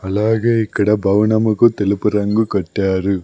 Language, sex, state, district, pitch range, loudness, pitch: Telugu, male, Andhra Pradesh, Sri Satya Sai, 100-110 Hz, -16 LUFS, 105 Hz